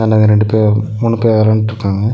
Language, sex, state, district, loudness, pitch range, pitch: Tamil, male, Tamil Nadu, Nilgiris, -12 LUFS, 105-110 Hz, 110 Hz